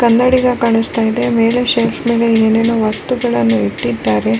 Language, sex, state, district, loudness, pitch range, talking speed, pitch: Kannada, female, Karnataka, Raichur, -14 LUFS, 155-240 Hz, 125 wpm, 230 Hz